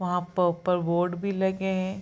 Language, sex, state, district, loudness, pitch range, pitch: Hindi, female, Bihar, Gopalganj, -27 LUFS, 175-190 Hz, 180 Hz